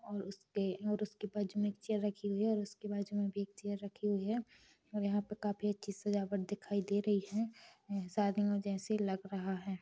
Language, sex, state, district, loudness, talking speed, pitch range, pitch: Hindi, female, Chhattisgarh, Rajnandgaon, -38 LUFS, 220 wpm, 200-210 Hz, 205 Hz